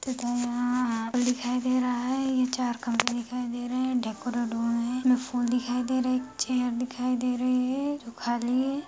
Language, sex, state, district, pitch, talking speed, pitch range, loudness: Hindi, female, Jharkhand, Sahebganj, 250 Hz, 215 wpm, 240-255 Hz, -28 LUFS